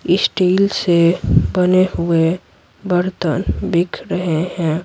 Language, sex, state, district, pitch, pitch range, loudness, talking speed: Hindi, female, Bihar, Patna, 180 Hz, 170-185 Hz, -16 LUFS, 100 wpm